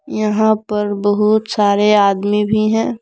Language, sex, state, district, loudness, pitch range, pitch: Hindi, female, Jharkhand, Palamu, -15 LUFS, 205-215 Hz, 210 Hz